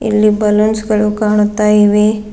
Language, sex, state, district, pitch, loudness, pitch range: Kannada, female, Karnataka, Bidar, 210 Hz, -12 LUFS, 210-215 Hz